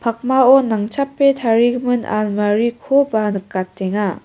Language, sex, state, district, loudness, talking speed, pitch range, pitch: Garo, female, Meghalaya, West Garo Hills, -17 LUFS, 70 wpm, 210-260 Hz, 230 Hz